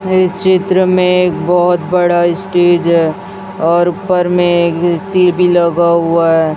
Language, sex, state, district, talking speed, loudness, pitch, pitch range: Hindi, female, Chhattisgarh, Raipur, 145 wpm, -12 LUFS, 175 Hz, 170-180 Hz